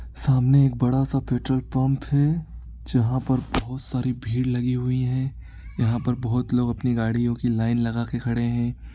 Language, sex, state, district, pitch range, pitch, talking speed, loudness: Hindi, male, Bihar, East Champaran, 120-130 Hz, 125 Hz, 175 wpm, -24 LUFS